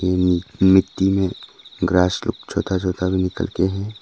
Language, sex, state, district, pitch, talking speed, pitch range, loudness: Hindi, male, Arunachal Pradesh, Papum Pare, 95 Hz, 165 wpm, 90-95 Hz, -20 LUFS